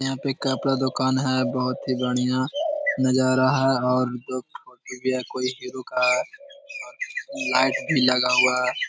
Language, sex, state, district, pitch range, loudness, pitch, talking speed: Hindi, male, Bihar, Jahanabad, 125-135 Hz, -23 LUFS, 130 Hz, 130 wpm